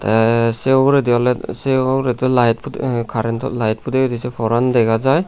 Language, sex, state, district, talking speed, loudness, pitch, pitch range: Chakma, male, Tripura, Unakoti, 170 wpm, -17 LUFS, 125 Hz, 115-130 Hz